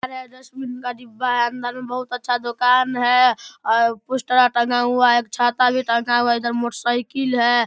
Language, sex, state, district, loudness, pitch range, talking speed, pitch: Maithili, male, Bihar, Darbhanga, -19 LUFS, 240-250 Hz, 205 wpm, 245 Hz